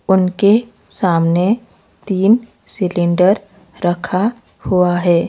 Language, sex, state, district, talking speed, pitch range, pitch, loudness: Hindi, female, Odisha, Malkangiri, 80 wpm, 175-210 Hz, 185 Hz, -16 LUFS